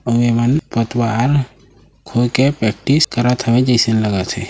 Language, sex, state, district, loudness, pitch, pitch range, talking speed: Chhattisgarhi, male, Chhattisgarh, Raigarh, -16 LUFS, 120 Hz, 115-130 Hz, 175 wpm